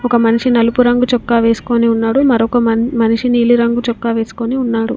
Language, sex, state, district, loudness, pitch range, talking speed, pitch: Telugu, female, Telangana, Komaram Bheem, -13 LUFS, 230-245 Hz, 170 wpm, 235 Hz